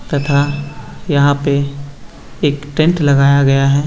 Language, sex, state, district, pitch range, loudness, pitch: Hindi, male, Uttar Pradesh, Hamirpur, 140-145 Hz, -14 LUFS, 140 Hz